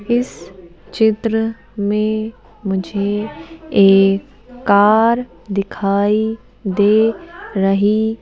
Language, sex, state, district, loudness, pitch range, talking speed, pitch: Hindi, female, Madhya Pradesh, Bhopal, -16 LUFS, 195-225 Hz, 75 wpm, 210 Hz